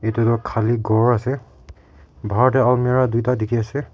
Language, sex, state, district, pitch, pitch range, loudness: Nagamese, male, Nagaland, Kohima, 115 Hz, 110-125 Hz, -19 LUFS